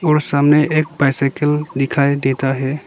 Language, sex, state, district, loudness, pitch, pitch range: Hindi, male, Arunachal Pradesh, Lower Dibang Valley, -16 LUFS, 145 Hz, 135-150 Hz